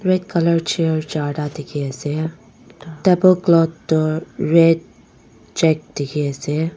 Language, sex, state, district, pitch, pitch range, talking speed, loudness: Nagamese, female, Nagaland, Dimapur, 160 Hz, 150-165 Hz, 95 wpm, -18 LUFS